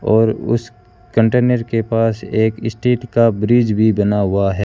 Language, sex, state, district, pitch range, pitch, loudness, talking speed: Hindi, male, Rajasthan, Bikaner, 110-120 Hz, 115 Hz, -16 LUFS, 165 wpm